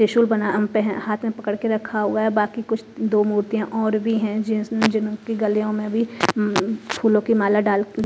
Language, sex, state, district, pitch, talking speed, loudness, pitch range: Hindi, female, Punjab, Kapurthala, 215 Hz, 215 wpm, -21 LUFS, 210-225 Hz